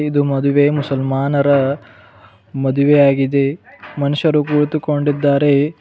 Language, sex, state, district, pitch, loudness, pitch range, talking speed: Kannada, male, Karnataka, Bidar, 140 Hz, -15 LUFS, 135-145 Hz, 60 wpm